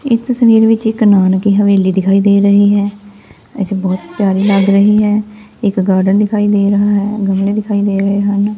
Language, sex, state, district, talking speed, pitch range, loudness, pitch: Punjabi, female, Punjab, Fazilka, 190 wpm, 195-210 Hz, -12 LUFS, 200 Hz